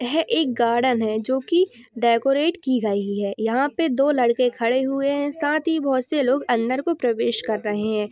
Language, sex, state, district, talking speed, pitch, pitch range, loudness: Hindi, female, Bihar, Bhagalpur, 215 wpm, 255 Hz, 230-285 Hz, -21 LUFS